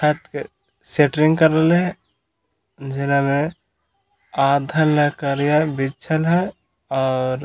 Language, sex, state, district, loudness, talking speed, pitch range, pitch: Magahi, male, Bihar, Gaya, -19 LUFS, 95 wpm, 140-160 Hz, 150 Hz